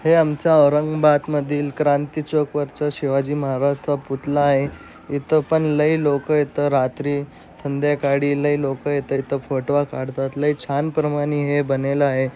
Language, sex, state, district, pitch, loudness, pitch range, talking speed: Marathi, male, Maharashtra, Aurangabad, 145 Hz, -20 LUFS, 140-150 Hz, 140 wpm